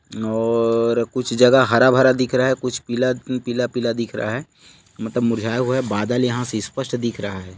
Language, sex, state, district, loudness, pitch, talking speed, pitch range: Hindi, male, Chhattisgarh, Bilaspur, -20 LUFS, 120 Hz, 180 wpm, 115-125 Hz